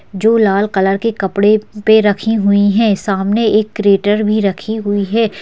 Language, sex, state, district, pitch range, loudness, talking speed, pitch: Hindi, female, Bihar, Jahanabad, 200-220 Hz, -13 LUFS, 175 wpm, 210 Hz